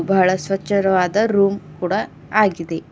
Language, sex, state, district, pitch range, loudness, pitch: Kannada, female, Karnataka, Bidar, 180-200 Hz, -19 LUFS, 195 Hz